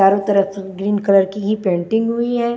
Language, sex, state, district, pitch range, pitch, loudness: Hindi, female, Maharashtra, Washim, 195-225 Hz, 200 Hz, -17 LUFS